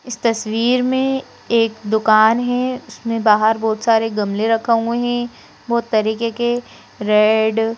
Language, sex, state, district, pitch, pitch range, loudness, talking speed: Hindi, female, Madhya Pradesh, Bhopal, 225 Hz, 220-240 Hz, -17 LUFS, 145 wpm